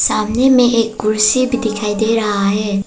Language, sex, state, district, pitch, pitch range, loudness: Hindi, female, Arunachal Pradesh, Papum Pare, 215 Hz, 210-240 Hz, -14 LUFS